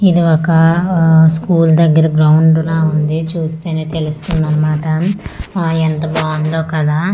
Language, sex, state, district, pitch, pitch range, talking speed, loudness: Telugu, female, Andhra Pradesh, Manyam, 160 Hz, 155-165 Hz, 120 wpm, -13 LUFS